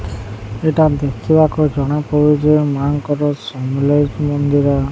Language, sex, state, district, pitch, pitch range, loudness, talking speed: Odia, male, Odisha, Sambalpur, 145 Hz, 140-150 Hz, -15 LUFS, 75 wpm